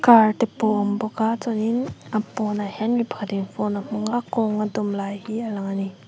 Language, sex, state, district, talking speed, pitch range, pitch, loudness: Mizo, female, Mizoram, Aizawl, 245 wpm, 205-230 Hz, 215 Hz, -23 LUFS